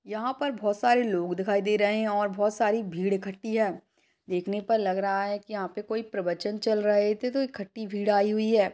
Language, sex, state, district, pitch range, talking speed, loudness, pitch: Hindi, female, Chhattisgarh, Jashpur, 200-220 Hz, 235 wpm, -27 LUFS, 210 Hz